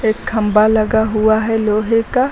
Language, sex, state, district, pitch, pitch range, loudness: Hindi, female, Uttar Pradesh, Lucknow, 220 Hz, 215-225 Hz, -15 LUFS